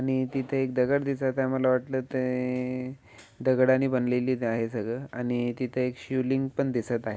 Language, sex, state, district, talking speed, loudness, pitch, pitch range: Marathi, male, Maharashtra, Aurangabad, 165 wpm, -28 LUFS, 130 Hz, 125-130 Hz